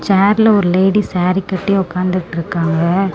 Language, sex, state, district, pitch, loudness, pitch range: Tamil, female, Tamil Nadu, Namakkal, 190 Hz, -15 LUFS, 175-195 Hz